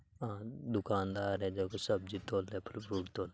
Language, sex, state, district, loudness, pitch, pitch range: Marwari, male, Rajasthan, Nagaur, -38 LUFS, 100 Hz, 95-110 Hz